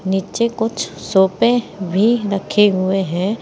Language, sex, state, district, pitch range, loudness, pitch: Hindi, female, Uttar Pradesh, Saharanpur, 190-230 Hz, -17 LUFS, 200 Hz